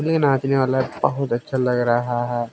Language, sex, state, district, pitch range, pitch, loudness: Hindi, male, Haryana, Jhajjar, 120-135 Hz, 130 Hz, -21 LUFS